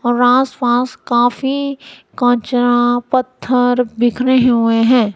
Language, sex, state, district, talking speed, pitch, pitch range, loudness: Hindi, female, Punjab, Kapurthala, 105 wpm, 245 Hz, 240-255 Hz, -14 LUFS